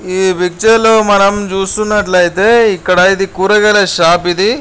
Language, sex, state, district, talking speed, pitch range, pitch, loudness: Telugu, male, Andhra Pradesh, Guntur, 115 wpm, 185-210 Hz, 195 Hz, -10 LUFS